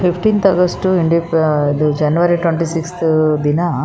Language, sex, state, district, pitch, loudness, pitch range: Kannada, female, Karnataka, Raichur, 165 Hz, -15 LUFS, 155-175 Hz